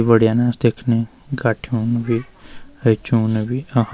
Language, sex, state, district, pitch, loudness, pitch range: Garhwali, male, Uttarakhand, Uttarkashi, 115 Hz, -19 LUFS, 115-120 Hz